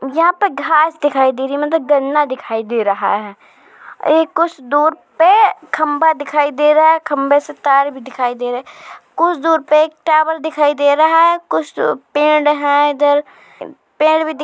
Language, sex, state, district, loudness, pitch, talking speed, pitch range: Hindi, female, Uttar Pradesh, Jyotiba Phule Nagar, -14 LUFS, 295 Hz, 200 wpm, 285-320 Hz